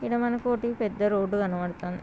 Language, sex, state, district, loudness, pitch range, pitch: Telugu, female, Andhra Pradesh, Krishna, -27 LUFS, 190-235 Hz, 205 Hz